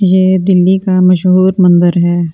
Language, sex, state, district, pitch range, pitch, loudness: Hindi, female, Delhi, New Delhi, 175-185 Hz, 185 Hz, -9 LUFS